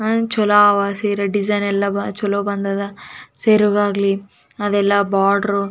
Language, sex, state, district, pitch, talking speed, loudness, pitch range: Kannada, female, Karnataka, Raichur, 200 Hz, 160 wpm, -17 LUFS, 200-205 Hz